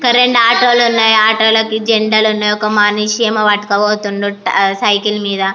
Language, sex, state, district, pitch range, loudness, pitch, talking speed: Telugu, female, Andhra Pradesh, Anantapur, 205-225 Hz, -12 LUFS, 215 Hz, 150 wpm